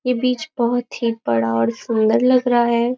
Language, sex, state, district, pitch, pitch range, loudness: Hindi, female, Maharashtra, Nagpur, 235 Hz, 225-250 Hz, -18 LUFS